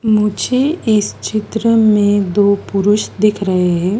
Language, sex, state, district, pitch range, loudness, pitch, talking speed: Hindi, female, Madhya Pradesh, Dhar, 200-220 Hz, -14 LUFS, 210 Hz, 135 wpm